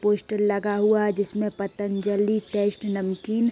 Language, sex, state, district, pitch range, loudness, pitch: Hindi, female, Bihar, Gopalganj, 205-210 Hz, -25 LUFS, 205 Hz